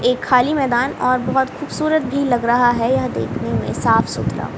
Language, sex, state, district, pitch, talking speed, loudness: Hindi, female, Haryana, Rohtak, 245 Hz, 195 wpm, -18 LUFS